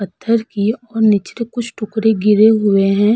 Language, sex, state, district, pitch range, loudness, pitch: Hindi, female, Uttar Pradesh, Hamirpur, 205-225 Hz, -15 LUFS, 215 Hz